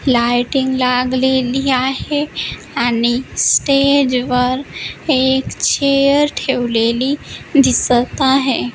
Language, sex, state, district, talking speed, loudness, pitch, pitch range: Marathi, female, Maharashtra, Gondia, 70 wpm, -15 LUFS, 260 Hz, 250-275 Hz